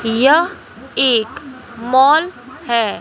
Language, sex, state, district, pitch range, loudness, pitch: Hindi, female, Bihar, West Champaran, 235-295 Hz, -15 LUFS, 260 Hz